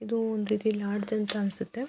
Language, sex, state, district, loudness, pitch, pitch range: Kannada, female, Karnataka, Mysore, -30 LUFS, 215 Hz, 205-225 Hz